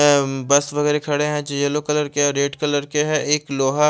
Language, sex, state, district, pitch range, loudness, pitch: Hindi, male, Chandigarh, Chandigarh, 140-150 Hz, -19 LUFS, 145 Hz